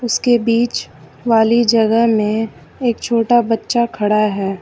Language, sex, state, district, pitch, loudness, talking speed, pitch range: Hindi, female, Uttar Pradesh, Lucknow, 230 Hz, -15 LUFS, 130 wpm, 215-235 Hz